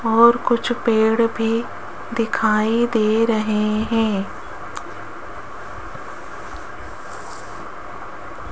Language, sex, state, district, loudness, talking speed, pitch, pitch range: Hindi, female, Rajasthan, Jaipur, -19 LUFS, 55 wpm, 225 Hz, 220-230 Hz